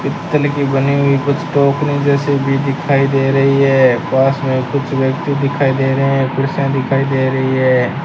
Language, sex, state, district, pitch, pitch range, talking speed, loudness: Hindi, male, Rajasthan, Bikaner, 135 Hz, 135-140 Hz, 185 wpm, -14 LUFS